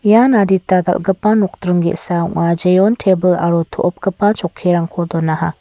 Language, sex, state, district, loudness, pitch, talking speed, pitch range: Garo, female, Meghalaya, West Garo Hills, -15 LUFS, 180 Hz, 140 wpm, 170-195 Hz